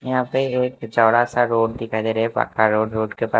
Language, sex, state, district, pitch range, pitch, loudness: Hindi, male, Himachal Pradesh, Shimla, 110-125 Hz, 115 Hz, -20 LUFS